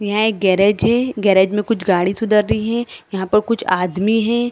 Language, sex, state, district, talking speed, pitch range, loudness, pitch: Hindi, female, Chhattisgarh, Bilaspur, 210 wpm, 195-230 Hz, -17 LUFS, 210 Hz